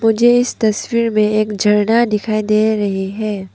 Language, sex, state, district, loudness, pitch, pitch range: Hindi, female, Arunachal Pradesh, Papum Pare, -15 LUFS, 215 Hz, 210-225 Hz